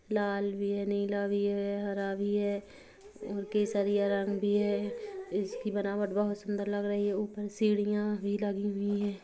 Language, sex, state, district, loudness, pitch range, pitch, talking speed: Hindi, female, Chhattisgarh, Kabirdham, -32 LUFS, 200-210 Hz, 205 Hz, 180 wpm